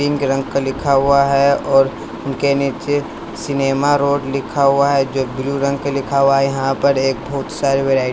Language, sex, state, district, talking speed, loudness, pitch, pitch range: Hindi, male, Bihar, West Champaran, 200 wpm, -16 LUFS, 140 Hz, 135-140 Hz